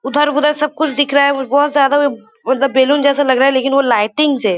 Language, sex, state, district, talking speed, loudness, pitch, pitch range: Hindi, female, West Bengal, Kolkata, 260 wpm, -13 LUFS, 280 Hz, 265-290 Hz